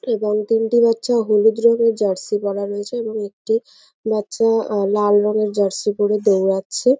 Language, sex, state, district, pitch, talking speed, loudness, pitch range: Bengali, female, West Bengal, North 24 Parganas, 215 Hz, 145 wpm, -18 LUFS, 205-225 Hz